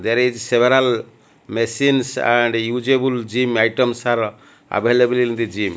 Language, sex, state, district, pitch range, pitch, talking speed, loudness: English, male, Odisha, Malkangiri, 115-125 Hz, 120 Hz, 135 wpm, -18 LUFS